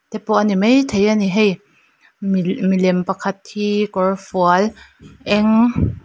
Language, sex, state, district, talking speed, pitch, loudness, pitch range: Mizo, female, Mizoram, Aizawl, 140 wpm, 205 Hz, -17 LUFS, 190-210 Hz